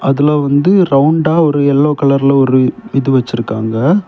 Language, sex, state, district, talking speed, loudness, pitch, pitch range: Tamil, male, Tamil Nadu, Kanyakumari, 130 wpm, -12 LUFS, 140 Hz, 135-150 Hz